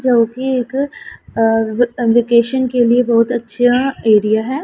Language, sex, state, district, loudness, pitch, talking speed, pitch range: Hindi, female, Punjab, Pathankot, -15 LUFS, 240 Hz, 140 wpm, 230-255 Hz